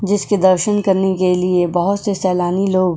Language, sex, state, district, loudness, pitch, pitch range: Hindi, female, Goa, North and South Goa, -16 LUFS, 190 Hz, 180-200 Hz